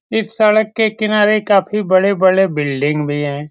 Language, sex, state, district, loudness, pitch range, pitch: Hindi, male, Bihar, Saran, -15 LUFS, 150-215 Hz, 200 Hz